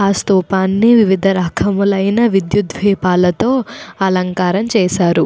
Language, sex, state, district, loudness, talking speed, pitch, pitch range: Telugu, female, Andhra Pradesh, Anantapur, -14 LUFS, 90 wpm, 195 Hz, 180-205 Hz